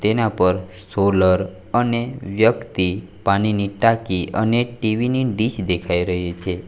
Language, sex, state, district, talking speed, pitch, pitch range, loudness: Gujarati, male, Gujarat, Valsad, 125 wpm, 100 Hz, 90-115 Hz, -20 LUFS